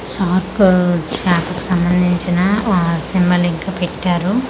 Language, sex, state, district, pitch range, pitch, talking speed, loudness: Telugu, female, Andhra Pradesh, Manyam, 175-190 Hz, 180 Hz, 105 wpm, -16 LUFS